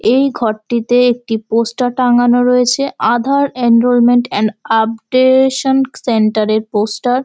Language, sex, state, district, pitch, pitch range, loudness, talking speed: Bengali, female, West Bengal, Dakshin Dinajpur, 245 Hz, 225-255 Hz, -13 LUFS, 115 wpm